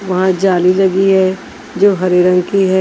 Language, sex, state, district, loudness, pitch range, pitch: Hindi, female, Maharashtra, Washim, -12 LUFS, 180-195 Hz, 190 Hz